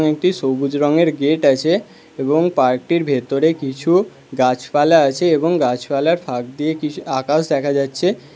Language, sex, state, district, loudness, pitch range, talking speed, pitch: Bengali, male, Karnataka, Bangalore, -17 LUFS, 135-160 Hz, 135 wpm, 145 Hz